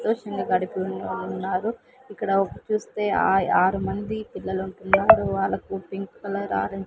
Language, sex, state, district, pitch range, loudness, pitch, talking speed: Telugu, female, Andhra Pradesh, Sri Satya Sai, 190-210 Hz, -24 LUFS, 195 Hz, 120 wpm